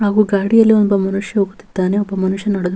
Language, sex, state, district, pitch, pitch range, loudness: Kannada, female, Karnataka, Bellary, 200 Hz, 195-210 Hz, -16 LUFS